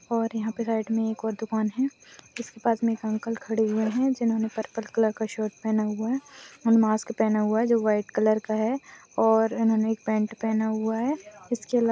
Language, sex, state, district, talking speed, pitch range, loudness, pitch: Hindi, female, Chhattisgarh, Balrampur, 220 wpm, 220-230 Hz, -26 LUFS, 225 Hz